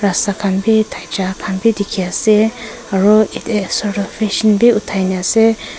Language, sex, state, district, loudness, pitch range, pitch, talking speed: Nagamese, female, Nagaland, Kohima, -15 LUFS, 195-225 Hz, 210 Hz, 175 wpm